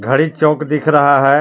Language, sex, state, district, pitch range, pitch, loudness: Hindi, male, Jharkhand, Palamu, 140-155 Hz, 150 Hz, -13 LUFS